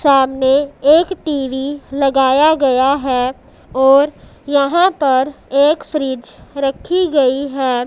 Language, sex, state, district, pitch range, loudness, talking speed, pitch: Hindi, male, Punjab, Pathankot, 265-290 Hz, -15 LUFS, 105 wpm, 275 Hz